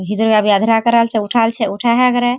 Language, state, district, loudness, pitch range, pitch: Surjapuri, Bihar, Kishanganj, -14 LUFS, 215-235 Hz, 225 Hz